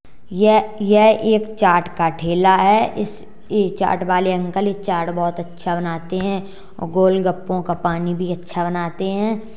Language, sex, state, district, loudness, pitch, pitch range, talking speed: Hindi, male, Uttar Pradesh, Jalaun, -18 LUFS, 185 Hz, 175-205 Hz, 150 wpm